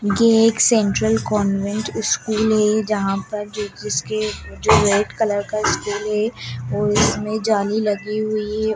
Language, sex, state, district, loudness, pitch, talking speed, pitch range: Hindi, female, Bihar, Darbhanga, -19 LUFS, 210 Hz, 135 wpm, 205-215 Hz